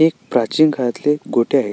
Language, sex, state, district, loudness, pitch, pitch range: Marathi, male, Maharashtra, Sindhudurg, -17 LUFS, 140 Hz, 120-155 Hz